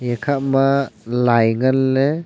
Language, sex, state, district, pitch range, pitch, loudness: Wancho, male, Arunachal Pradesh, Longding, 120-135 Hz, 130 Hz, -17 LUFS